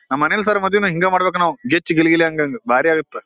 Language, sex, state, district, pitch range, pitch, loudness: Kannada, male, Karnataka, Bijapur, 155-185 Hz, 165 Hz, -16 LUFS